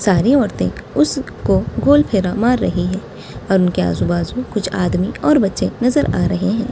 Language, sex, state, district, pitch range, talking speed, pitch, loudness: Hindi, female, Delhi, New Delhi, 180-255 Hz, 180 wpm, 205 Hz, -17 LUFS